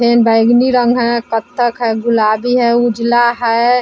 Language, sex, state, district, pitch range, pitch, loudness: Hindi, female, Bihar, Vaishali, 230-240 Hz, 235 Hz, -13 LUFS